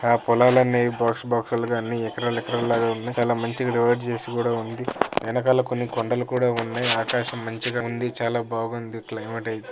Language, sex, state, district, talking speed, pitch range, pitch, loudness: Telugu, male, Andhra Pradesh, Krishna, 180 wpm, 115-120 Hz, 120 Hz, -24 LUFS